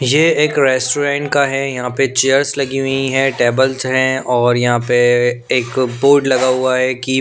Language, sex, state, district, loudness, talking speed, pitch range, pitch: Hindi, male, Punjab, Pathankot, -14 LUFS, 185 wpm, 125-135 Hz, 130 Hz